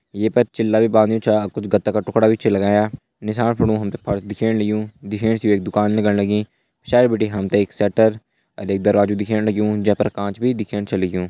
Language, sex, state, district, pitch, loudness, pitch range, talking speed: Hindi, male, Uttarakhand, Uttarkashi, 105 Hz, -19 LUFS, 105-110 Hz, 240 wpm